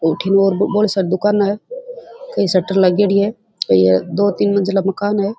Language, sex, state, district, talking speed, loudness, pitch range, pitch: Rajasthani, female, Rajasthan, Churu, 180 wpm, -16 LUFS, 190-205 Hz, 200 Hz